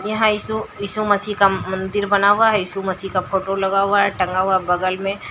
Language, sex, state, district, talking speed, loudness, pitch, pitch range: Hindi, female, Bihar, Katihar, 225 wpm, -19 LUFS, 195 Hz, 190-205 Hz